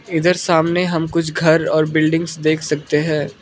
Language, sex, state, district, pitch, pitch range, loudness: Hindi, male, Arunachal Pradesh, Lower Dibang Valley, 160 Hz, 155-170 Hz, -17 LUFS